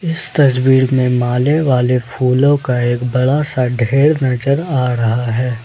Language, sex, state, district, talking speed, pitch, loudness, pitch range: Hindi, male, Jharkhand, Ranchi, 160 wpm, 130 Hz, -14 LUFS, 125-140 Hz